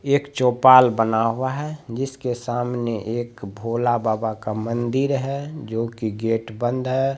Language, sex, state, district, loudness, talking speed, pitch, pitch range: Hindi, male, Bihar, Begusarai, -22 LUFS, 150 wpm, 120 Hz, 115-130 Hz